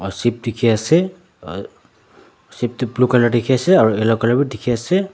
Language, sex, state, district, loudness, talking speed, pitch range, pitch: Nagamese, male, Nagaland, Dimapur, -17 LUFS, 140 wpm, 115-135 Hz, 120 Hz